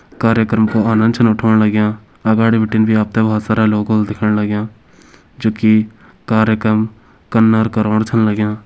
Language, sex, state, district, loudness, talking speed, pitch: Kumaoni, male, Uttarakhand, Uttarkashi, -14 LUFS, 165 wpm, 110 Hz